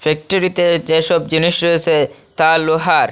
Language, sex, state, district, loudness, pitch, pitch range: Bengali, male, Assam, Hailakandi, -14 LUFS, 165 Hz, 160-175 Hz